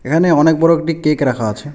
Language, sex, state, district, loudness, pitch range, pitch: Bengali, male, West Bengal, Alipurduar, -14 LUFS, 135-165 Hz, 150 Hz